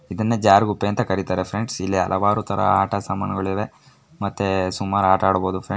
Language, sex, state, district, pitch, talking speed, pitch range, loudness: Kannada, female, Karnataka, Mysore, 100 Hz, 175 wpm, 95-105 Hz, -21 LUFS